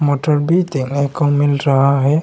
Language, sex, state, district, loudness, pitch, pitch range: Hindi, male, Arunachal Pradesh, Longding, -15 LUFS, 145 Hz, 140-150 Hz